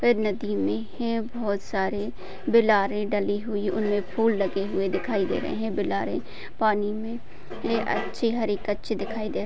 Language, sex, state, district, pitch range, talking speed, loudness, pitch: Hindi, female, Maharashtra, Pune, 200-220 Hz, 170 wpm, -26 LUFS, 210 Hz